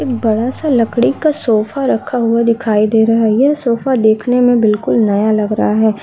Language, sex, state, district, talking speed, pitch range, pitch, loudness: Hindi, female, Andhra Pradesh, Krishna, 200 wpm, 215-250 Hz, 230 Hz, -13 LUFS